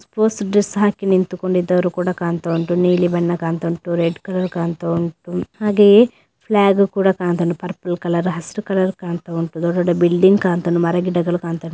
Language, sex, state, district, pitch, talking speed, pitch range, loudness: Kannada, female, Karnataka, Dakshina Kannada, 175 Hz, 115 wpm, 170-190 Hz, -18 LUFS